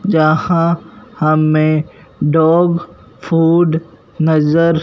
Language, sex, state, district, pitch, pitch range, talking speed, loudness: Hindi, male, Punjab, Fazilka, 160 Hz, 155-170 Hz, 60 wpm, -14 LUFS